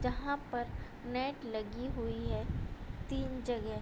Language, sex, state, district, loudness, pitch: Hindi, female, Uttar Pradesh, Budaun, -39 LUFS, 220 Hz